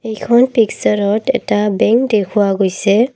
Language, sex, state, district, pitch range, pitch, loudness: Assamese, female, Assam, Kamrup Metropolitan, 205-235 Hz, 215 Hz, -14 LUFS